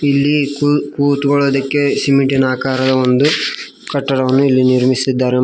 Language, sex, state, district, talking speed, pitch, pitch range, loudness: Kannada, male, Karnataka, Koppal, 90 wpm, 135 Hz, 130-140 Hz, -14 LUFS